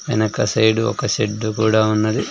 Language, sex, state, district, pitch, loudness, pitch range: Telugu, male, Andhra Pradesh, Sri Satya Sai, 110 Hz, -18 LUFS, 110-115 Hz